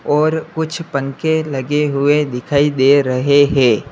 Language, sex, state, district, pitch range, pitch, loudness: Hindi, male, Uttar Pradesh, Lalitpur, 135-155 Hz, 145 Hz, -15 LUFS